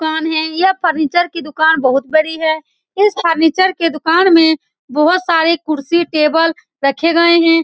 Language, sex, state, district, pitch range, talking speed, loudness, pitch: Hindi, female, Bihar, Saran, 315-340 Hz, 165 wpm, -13 LUFS, 325 Hz